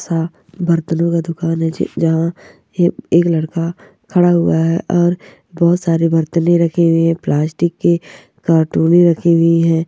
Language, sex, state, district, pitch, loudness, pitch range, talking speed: Hindi, male, Bihar, Sitamarhi, 165 Hz, -15 LUFS, 165-175 Hz, 140 wpm